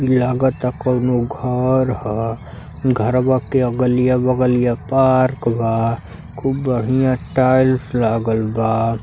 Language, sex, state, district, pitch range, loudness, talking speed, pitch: Bhojpuri, male, Uttar Pradesh, Deoria, 115-130 Hz, -17 LUFS, 100 wpm, 125 Hz